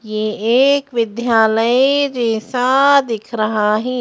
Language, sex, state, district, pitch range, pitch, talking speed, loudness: Hindi, female, Madhya Pradesh, Bhopal, 220-260 Hz, 235 Hz, 105 wpm, -15 LUFS